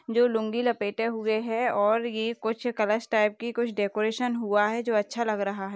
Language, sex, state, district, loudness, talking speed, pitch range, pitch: Hindi, female, Uttar Pradesh, Deoria, -27 LUFS, 210 wpm, 210-235 Hz, 225 Hz